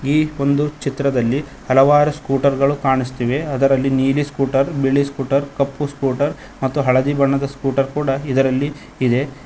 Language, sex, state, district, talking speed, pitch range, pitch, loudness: Kannada, male, Karnataka, Koppal, 135 wpm, 135-145 Hz, 140 Hz, -18 LUFS